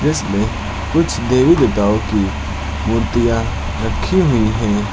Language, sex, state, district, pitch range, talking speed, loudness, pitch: Hindi, male, Uttar Pradesh, Lucknow, 95-115 Hz, 110 wpm, -16 LUFS, 105 Hz